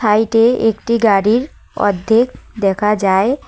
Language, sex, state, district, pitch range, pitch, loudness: Bengali, female, West Bengal, Cooch Behar, 205-235 Hz, 220 Hz, -15 LUFS